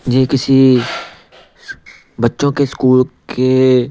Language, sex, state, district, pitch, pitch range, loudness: Hindi, male, Punjab, Pathankot, 130 Hz, 120-135 Hz, -13 LUFS